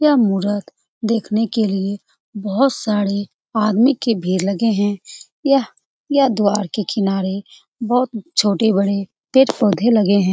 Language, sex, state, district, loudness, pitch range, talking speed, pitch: Hindi, female, Bihar, Saran, -18 LUFS, 200-230 Hz, 130 wpm, 210 Hz